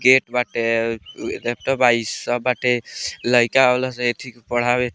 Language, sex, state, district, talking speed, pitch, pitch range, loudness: Bhojpuri, male, Bihar, Muzaffarpur, 170 wpm, 120 Hz, 120-125 Hz, -20 LUFS